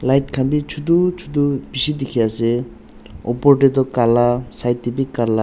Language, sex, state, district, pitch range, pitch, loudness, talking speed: Nagamese, male, Nagaland, Dimapur, 120-140 Hz, 130 Hz, -18 LUFS, 175 wpm